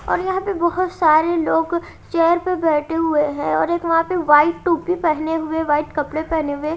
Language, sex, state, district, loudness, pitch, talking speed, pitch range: Hindi, female, Haryana, Jhajjar, -19 LUFS, 325 Hz, 205 wpm, 310-345 Hz